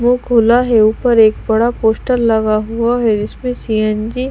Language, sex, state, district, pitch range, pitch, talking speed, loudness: Hindi, female, Bihar, Patna, 220-245 Hz, 230 Hz, 210 wpm, -14 LUFS